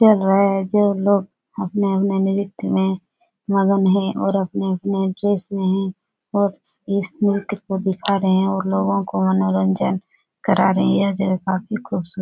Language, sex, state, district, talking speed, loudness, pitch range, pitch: Hindi, female, Bihar, Supaul, 165 wpm, -20 LUFS, 185-200 Hz, 195 Hz